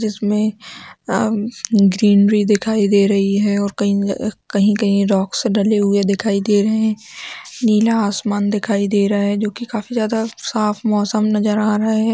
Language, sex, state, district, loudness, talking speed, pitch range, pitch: Hindi, female, Chhattisgarh, Raigarh, -17 LUFS, 170 wpm, 205-220 Hz, 210 Hz